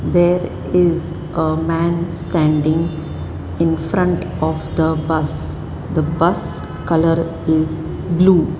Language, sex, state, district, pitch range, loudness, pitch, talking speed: English, male, Maharashtra, Mumbai Suburban, 160-170 Hz, -18 LUFS, 165 Hz, 105 wpm